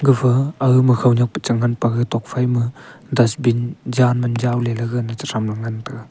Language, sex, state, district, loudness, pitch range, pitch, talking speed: Wancho, male, Arunachal Pradesh, Longding, -18 LUFS, 115-125 Hz, 120 Hz, 175 wpm